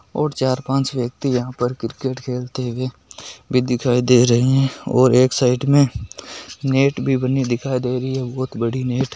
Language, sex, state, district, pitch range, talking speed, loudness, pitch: Hindi, male, Rajasthan, Nagaur, 125-135 Hz, 170 wpm, -19 LUFS, 130 Hz